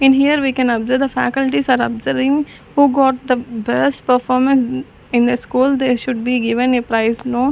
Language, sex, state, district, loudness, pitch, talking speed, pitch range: English, female, Chandigarh, Chandigarh, -16 LUFS, 255 Hz, 190 wpm, 245-270 Hz